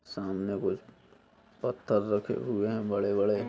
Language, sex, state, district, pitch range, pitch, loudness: Hindi, male, Bihar, Purnia, 100-105 Hz, 100 Hz, -31 LUFS